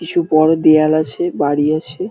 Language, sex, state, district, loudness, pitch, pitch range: Bengali, male, West Bengal, Dakshin Dinajpur, -14 LUFS, 155 Hz, 155-165 Hz